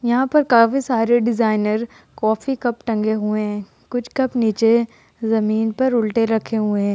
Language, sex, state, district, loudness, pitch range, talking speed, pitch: Hindi, female, Uttar Pradesh, Jalaun, -19 LUFS, 215-240 Hz, 165 wpm, 225 Hz